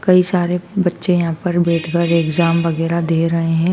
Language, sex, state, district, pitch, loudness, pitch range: Hindi, female, Madhya Pradesh, Dhar, 170 Hz, -17 LUFS, 165-180 Hz